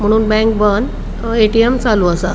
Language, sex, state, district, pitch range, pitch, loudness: Konkani, female, Goa, North and South Goa, 205-225 Hz, 220 Hz, -14 LUFS